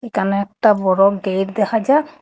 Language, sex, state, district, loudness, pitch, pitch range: Bengali, female, Assam, Hailakandi, -17 LUFS, 200 Hz, 195-225 Hz